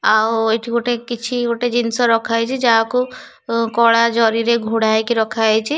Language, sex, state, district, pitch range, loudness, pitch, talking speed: Odia, female, Odisha, Nuapada, 225-240 Hz, -17 LUFS, 230 Hz, 135 wpm